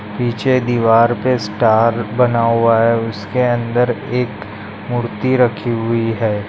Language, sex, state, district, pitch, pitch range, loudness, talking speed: Hindi, male, Maharashtra, Chandrapur, 115 Hz, 110-120 Hz, -16 LUFS, 130 wpm